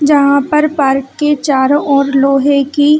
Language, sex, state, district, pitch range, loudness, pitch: Hindi, female, Chhattisgarh, Bilaspur, 275-295 Hz, -11 LUFS, 280 Hz